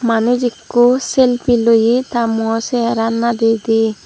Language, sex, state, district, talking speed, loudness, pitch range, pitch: Chakma, female, Tripura, Dhalai, 135 wpm, -15 LUFS, 225-245 Hz, 235 Hz